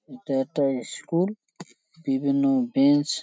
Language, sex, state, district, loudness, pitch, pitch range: Bengali, male, West Bengal, Paschim Medinipur, -24 LUFS, 140 Hz, 135-165 Hz